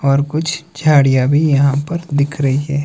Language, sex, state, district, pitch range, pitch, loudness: Hindi, male, Himachal Pradesh, Shimla, 140-150 Hz, 145 Hz, -15 LUFS